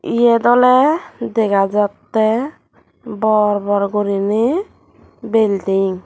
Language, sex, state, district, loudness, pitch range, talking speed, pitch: Chakma, female, Tripura, Dhalai, -16 LUFS, 205-235 Hz, 80 wpm, 215 Hz